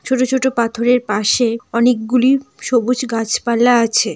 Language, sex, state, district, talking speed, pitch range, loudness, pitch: Bengali, female, West Bengal, Jalpaiguri, 160 wpm, 230-250 Hz, -16 LUFS, 240 Hz